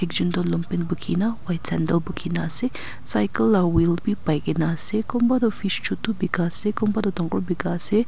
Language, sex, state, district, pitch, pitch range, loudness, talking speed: Nagamese, female, Nagaland, Kohima, 175 Hz, 165-210 Hz, -21 LUFS, 200 wpm